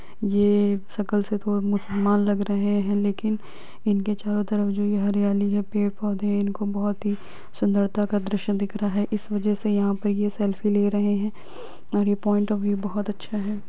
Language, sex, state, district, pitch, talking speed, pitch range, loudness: Hindi, female, Bihar, Lakhisarai, 205 Hz, 195 wpm, 200-210 Hz, -24 LUFS